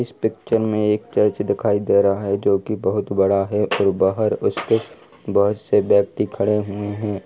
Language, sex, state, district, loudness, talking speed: Hindi, male, Bihar, Lakhisarai, -20 LUFS, 190 wpm